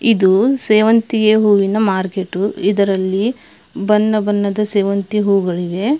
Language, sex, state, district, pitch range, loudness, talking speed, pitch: Kannada, female, Karnataka, Belgaum, 195-215 Hz, -15 LUFS, 80 wpm, 205 Hz